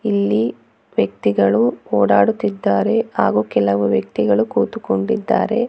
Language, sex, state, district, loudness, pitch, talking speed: Kannada, female, Karnataka, Bangalore, -17 LUFS, 105 Hz, 75 wpm